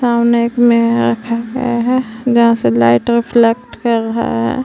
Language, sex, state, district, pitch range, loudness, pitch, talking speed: Hindi, female, Uttar Pradesh, Varanasi, 230-240 Hz, -14 LUFS, 235 Hz, 90 wpm